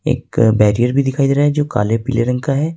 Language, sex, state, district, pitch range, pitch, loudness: Hindi, male, Jharkhand, Ranchi, 115-145 Hz, 135 Hz, -15 LUFS